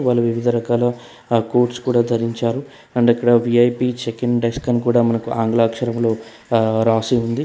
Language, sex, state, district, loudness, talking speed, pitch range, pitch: Telugu, male, Telangana, Hyderabad, -18 LUFS, 155 wpm, 115-120 Hz, 120 Hz